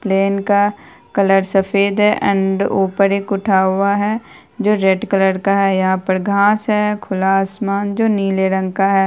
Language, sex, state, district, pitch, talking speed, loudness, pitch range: Hindi, female, Bihar, Araria, 195 Hz, 180 wpm, -16 LUFS, 195-205 Hz